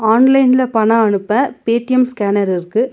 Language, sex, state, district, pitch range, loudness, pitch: Tamil, female, Tamil Nadu, Nilgiris, 210-255 Hz, -14 LUFS, 230 Hz